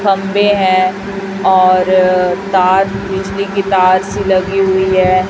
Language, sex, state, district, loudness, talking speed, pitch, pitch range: Hindi, female, Chhattisgarh, Raipur, -12 LUFS, 125 wpm, 190 Hz, 185-195 Hz